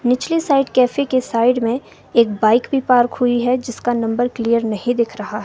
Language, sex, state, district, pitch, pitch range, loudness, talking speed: Hindi, female, Himachal Pradesh, Shimla, 245 Hz, 230-255 Hz, -17 LUFS, 200 wpm